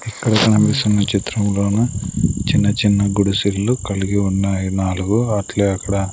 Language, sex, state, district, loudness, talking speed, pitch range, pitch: Telugu, male, Andhra Pradesh, Sri Satya Sai, -17 LUFS, 125 wpm, 100-105 Hz, 100 Hz